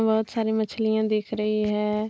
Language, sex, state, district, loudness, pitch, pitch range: Hindi, female, Bihar, Darbhanga, -25 LUFS, 220 Hz, 215-220 Hz